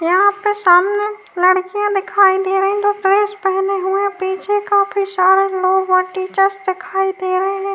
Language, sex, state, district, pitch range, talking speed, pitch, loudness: Hindi, female, Uttar Pradesh, Jyotiba Phule Nagar, 375-405 Hz, 160 wpm, 390 Hz, -16 LUFS